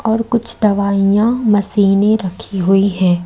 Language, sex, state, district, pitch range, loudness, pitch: Hindi, female, Madhya Pradesh, Umaria, 195-220 Hz, -14 LUFS, 200 Hz